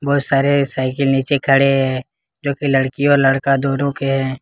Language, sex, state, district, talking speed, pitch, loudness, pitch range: Hindi, male, Jharkhand, Ranchi, 205 wpm, 135 Hz, -16 LUFS, 135-140 Hz